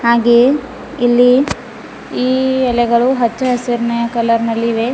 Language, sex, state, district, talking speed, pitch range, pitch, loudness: Kannada, female, Karnataka, Bidar, 95 wpm, 235-255 Hz, 240 Hz, -14 LUFS